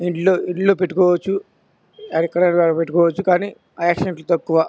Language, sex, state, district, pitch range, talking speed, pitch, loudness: Telugu, male, Andhra Pradesh, Krishna, 170-185 Hz, 115 wpm, 175 Hz, -18 LUFS